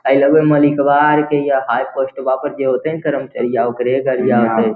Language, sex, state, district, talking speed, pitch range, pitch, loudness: Magahi, male, Bihar, Lakhisarai, 215 wpm, 125-145 Hz, 135 Hz, -15 LUFS